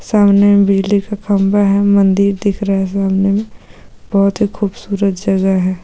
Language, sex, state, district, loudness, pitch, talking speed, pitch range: Hindi, female, Goa, North and South Goa, -14 LUFS, 200 Hz, 145 wpm, 195-205 Hz